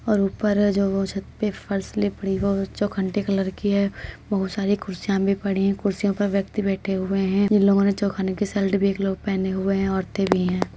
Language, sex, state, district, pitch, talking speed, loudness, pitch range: Hindi, female, Uttar Pradesh, Budaun, 195 Hz, 200 wpm, -23 LUFS, 195-205 Hz